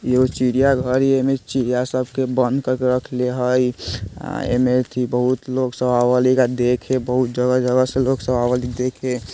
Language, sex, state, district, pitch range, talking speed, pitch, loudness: Bajjika, male, Bihar, Vaishali, 125-130 Hz, 180 wpm, 125 Hz, -19 LUFS